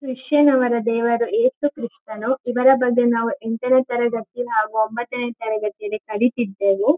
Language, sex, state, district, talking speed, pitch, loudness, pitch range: Kannada, female, Karnataka, Shimoga, 120 wpm, 240 Hz, -20 LUFS, 225-260 Hz